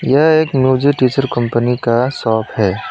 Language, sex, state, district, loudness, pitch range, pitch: Hindi, male, West Bengal, Alipurduar, -14 LUFS, 120-140 Hz, 130 Hz